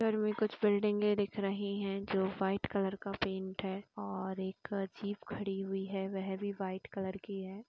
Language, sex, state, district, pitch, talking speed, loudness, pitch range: Hindi, female, Uttar Pradesh, Jalaun, 195 Hz, 195 wpm, -36 LUFS, 190-205 Hz